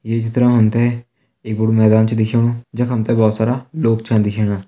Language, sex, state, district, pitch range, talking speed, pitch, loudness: Hindi, male, Uttarakhand, Tehri Garhwal, 110-120 Hz, 230 wpm, 115 Hz, -16 LUFS